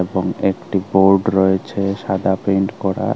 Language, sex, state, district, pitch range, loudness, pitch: Bengali, male, Tripura, Unakoti, 95-100 Hz, -17 LUFS, 95 Hz